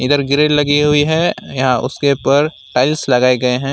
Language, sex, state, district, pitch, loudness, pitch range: Hindi, male, West Bengal, Alipurduar, 140 Hz, -14 LUFS, 125-145 Hz